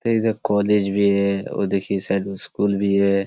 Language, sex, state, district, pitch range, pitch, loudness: Hindi, male, Chhattisgarh, Korba, 100-105 Hz, 100 Hz, -21 LUFS